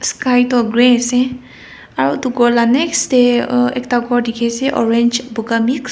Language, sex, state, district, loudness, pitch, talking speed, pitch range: Nagamese, female, Nagaland, Kohima, -14 LUFS, 245 Hz, 170 wpm, 235-250 Hz